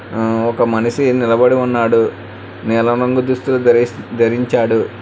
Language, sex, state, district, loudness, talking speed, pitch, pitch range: Telugu, male, Telangana, Hyderabad, -15 LUFS, 95 wpm, 115 Hz, 115-125 Hz